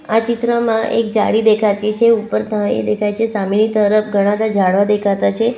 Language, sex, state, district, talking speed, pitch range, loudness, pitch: Gujarati, female, Gujarat, Valsad, 195 wpm, 200-225 Hz, -15 LUFS, 215 Hz